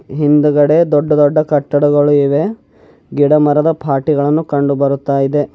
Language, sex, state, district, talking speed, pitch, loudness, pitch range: Kannada, male, Karnataka, Bidar, 130 wpm, 145 Hz, -13 LUFS, 145-150 Hz